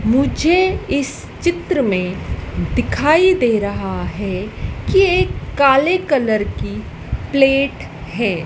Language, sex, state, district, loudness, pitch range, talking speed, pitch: Hindi, female, Madhya Pradesh, Dhar, -17 LUFS, 200-320 Hz, 105 wpm, 270 Hz